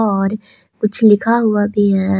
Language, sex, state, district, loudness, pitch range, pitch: Hindi, male, Jharkhand, Palamu, -15 LUFS, 200-220 Hz, 210 Hz